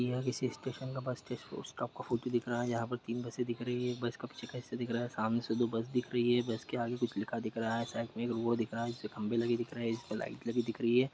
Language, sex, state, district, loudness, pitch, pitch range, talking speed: Hindi, male, Jharkhand, Jamtara, -36 LUFS, 120 Hz, 115-125 Hz, 335 wpm